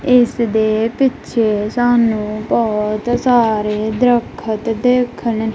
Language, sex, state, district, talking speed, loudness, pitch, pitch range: Punjabi, female, Punjab, Kapurthala, 85 wpm, -16 LUFS, 225 Hz, 215-245 Hz